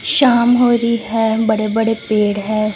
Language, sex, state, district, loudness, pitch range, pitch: Hindi, female, Chhattisgarh, Raipur, -15 LUFS, 215-235 Hz, 225 Hz